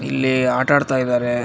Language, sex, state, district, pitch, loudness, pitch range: Kannada, male, Karnataka, Raichur, 130 Hz, -18 LUFS, 125-130 Hz